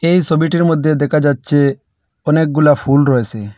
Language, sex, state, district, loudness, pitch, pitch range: Bengali, male, Assam, Hailakandi, -13 LUFS, 145 Hz, 135-155 Hz